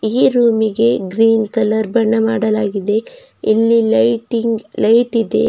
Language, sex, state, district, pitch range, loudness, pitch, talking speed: Kannada, female, Karnataka, Bidar, 215-230 Hz, -15 LUFS, 225 Hz, 100 wpm